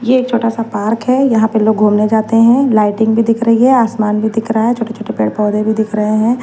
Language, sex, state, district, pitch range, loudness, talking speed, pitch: Hindi, female, Haryana, Jhajjar, 215-235 Hz, -13 LUFS, 250 wpm, 225 Hz